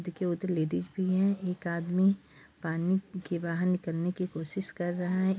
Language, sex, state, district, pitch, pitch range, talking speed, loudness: Hindi, female, Uttar Pradesh, Hamirpur, 180 Hz, 170-185 Hz, 180 wpm, -31 LUFS